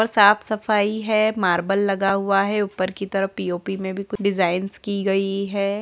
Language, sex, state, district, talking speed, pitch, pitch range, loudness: Hindi, female, Bihar, Jahanabad, 195 wpm, 200 Hz, 195-205 Hz, -21 LUFS